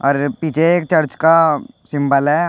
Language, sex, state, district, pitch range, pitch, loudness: Hindi, male, Uttar Pradesh, Shamli, 140-165 Hz, 155 Hz, -15 LUFS